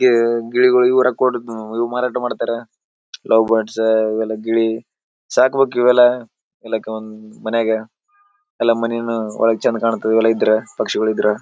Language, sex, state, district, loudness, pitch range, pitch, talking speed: Kannada, male, Karnataka, Bijapur, -17 LUFS, 110-125 Hz, 115 Hz, 110 wpm